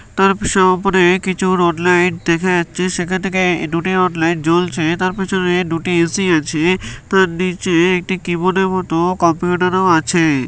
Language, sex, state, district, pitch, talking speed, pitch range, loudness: Bengali, male, West Bengal, North 24 Parganas, 180 Hz, 160 wpm, 170-185 Hz, -15 LUFS